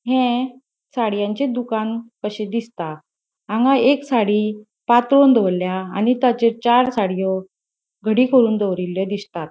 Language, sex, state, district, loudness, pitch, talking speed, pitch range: Konkani, female, Goa, North and South Goa, -19 LUFS, 225 Hz, 115 wpm, 200-245 Hz